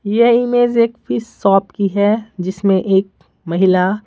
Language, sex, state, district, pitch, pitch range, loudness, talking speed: Hindi, female, Bihar, Patna, 200 Hz, 190-230 Hz, -15 LUFS, 165 wpm